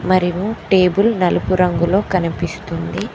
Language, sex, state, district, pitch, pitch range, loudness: Telugu, female, Telangana, Mahabubabad, 185 Hz, 175-195 Hz, -17 LUFS